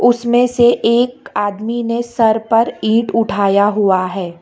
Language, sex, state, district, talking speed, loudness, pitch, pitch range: Hindi, female, Karnataka, Bangalore, 150 wpm, -15 LUFS, 230 Hz, 205-240 Hz